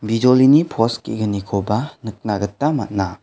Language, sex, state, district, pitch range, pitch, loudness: Garo, male, Meghalaya, West Garo Hills, 100-130 Hz, 110 Hz, -18 LUFS